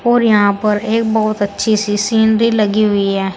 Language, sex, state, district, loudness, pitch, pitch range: Hindi, female, Uttar Pradesh, Saharanpur, -14 LUFS, 215 Hz, 205-220 Hz